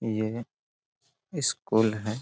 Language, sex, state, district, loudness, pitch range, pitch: Hindi, male, Bihar, Bhagalpur, -28 LUFS, 105-110 Hz, 110 Hz